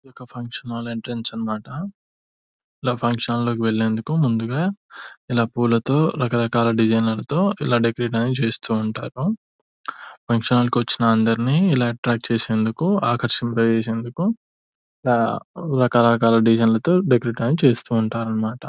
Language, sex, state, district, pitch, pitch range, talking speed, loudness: Telugu, male, Telangana, Nalgonda, 120 Hz, 115-130 Hz, 125 wpm, -20 LUFS